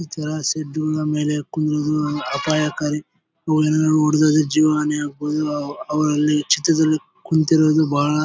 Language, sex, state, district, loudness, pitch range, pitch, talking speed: Kannada, male, Karnataka, Bellary, -19 LUFS, 150-155 Hz, 155 Hz, 85 wpm